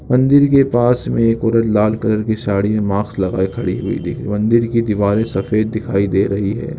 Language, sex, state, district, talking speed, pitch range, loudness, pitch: Hindi, male, Jharkhand, Jamtara, 210 wpm, 100-115 Hz, -16 LUFS, 110 Hz